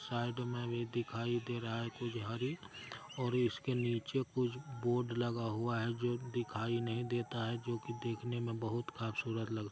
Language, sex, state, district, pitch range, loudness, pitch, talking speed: Hindi, male, Bihar, Araria, 115-120 Hz, -39 LUFS, 120 Hz, 165 wpm